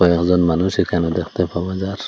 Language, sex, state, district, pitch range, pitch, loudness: Bengali, male, Assam, Hailakandi, 85-95 Hz, 90 Hz, -18 LUFS